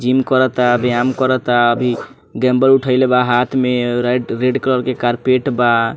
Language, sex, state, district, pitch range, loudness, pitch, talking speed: Bhojpuri, male, Bihar, Muzaffarpur, 120-130 Hz, -15 LUFS, 125 Hz, 150 wpm